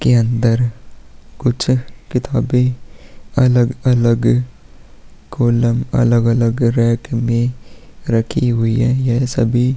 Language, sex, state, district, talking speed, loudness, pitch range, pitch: Hindi, male, Bihar, Vaishali, 90 wpm, -16 LUFS, 115-125 Hz, 120 Hz